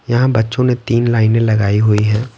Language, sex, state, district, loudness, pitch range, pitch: Hindi, male, Bihar, West Champaran, -14 LUFS, 110-120 Hz, 115 Hz